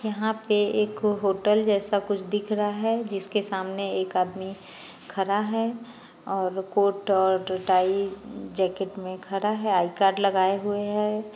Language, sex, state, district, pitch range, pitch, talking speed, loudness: Hindi, female, Bihar, Muzaffarpur, 190-210 Hz, 200 Hz, 150 wpm, -25 LUFS